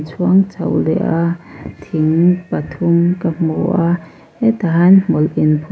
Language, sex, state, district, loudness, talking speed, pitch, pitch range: Mizo, female, Mizoram, Aizawl, -15 LUFS, 125 wpm, 170 Hz, 160-180 Hz